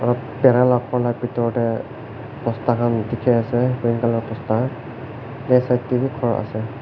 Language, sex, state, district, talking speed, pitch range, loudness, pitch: Nagamese, male, Nagaland, Kohima, 165 wpm, 115-125 Hz, -20 LUFS, 120 Hz